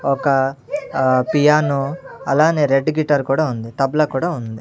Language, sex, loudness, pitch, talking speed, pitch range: Telugu, male, -18 LUFS, 140 Hz, 145 wpm, 135-155 Hz